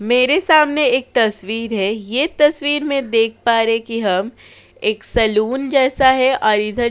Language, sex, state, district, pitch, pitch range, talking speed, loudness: Hindi, female, Uttar Pradesh, Jyotiba Phule Nagar, 240 Hz, 220-270 Hz, 180 wpm, -16 LUFS